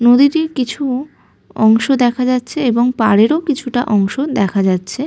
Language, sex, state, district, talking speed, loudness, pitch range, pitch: Bengali, female, West Bengal, Malda, 130 wpm, -15 LUFS, 220-270 Hz, 250 Hz